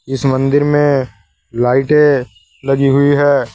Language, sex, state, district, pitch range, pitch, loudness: Hindi, male, Uttar Pradesh, Saharanpur, 125-140 Hz, 135 Hz, -13 LUFS